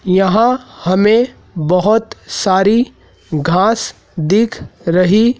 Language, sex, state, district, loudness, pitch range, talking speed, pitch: Hindi, male, Madhya Pradesh, Dhar, -14 LUFS, 180-230 Hz, 80 wpm, 200 Hz